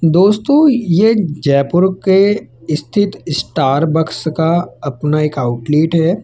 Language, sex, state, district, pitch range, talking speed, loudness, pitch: Hindi, male, Rajasthan, Jaipur, 150-195 Hz, 105 wpm, -14 LUFS, 165 Hz